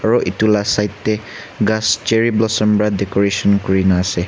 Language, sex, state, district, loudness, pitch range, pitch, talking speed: Nagamese, male, Nagaland, Kohima, -16 LUFS, 100-110 Hz, 105 Hz, 170 wpm